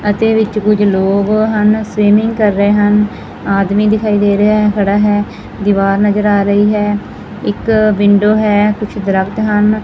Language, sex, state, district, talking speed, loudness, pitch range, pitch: Punjabi, female, Punjab, Fazilka, 165 wpm, -12 LUFS, 205-215 Hz, 210 Hz